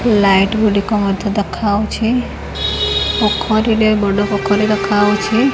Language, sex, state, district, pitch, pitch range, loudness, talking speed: Odia, female, Odisha, Khordha, 205 Hz, 200-215 Hz, -15 LUFS, 85 wpm